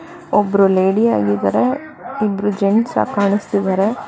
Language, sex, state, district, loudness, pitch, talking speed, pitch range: Kannada, female, Karnataka, Bangalore, -16 LUFS, 205 Hz, 105 wpm, 195-245 Hz